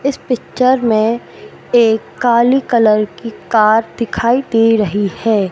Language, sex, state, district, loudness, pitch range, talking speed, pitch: Hindi, male, Madhya Pradesh, Katni, -14 LUFS, 215-240 Hz, 130 wpm, 230 Hz